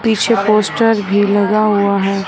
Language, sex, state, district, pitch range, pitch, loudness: Hindi, male, Punjab, Fazilka, 200-215 Hz, 205 Hz, -13 LUFS